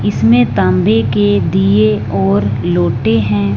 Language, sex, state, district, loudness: Hindi, female, Punjab, Fazilka, -12 LUFS